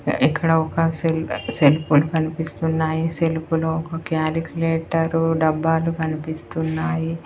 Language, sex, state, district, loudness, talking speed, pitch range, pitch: Telugu, female, Telangana, Komaram Bheem, -21 LUFS, 90 wpm, 160-165 Hz, 160 Hz